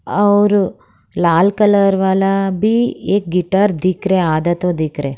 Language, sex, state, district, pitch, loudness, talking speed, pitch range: Hindi, female, Haryana, Charkhi Dadri, 190 Hz, -15 LUFS, 175 wpm, 175-205 Hz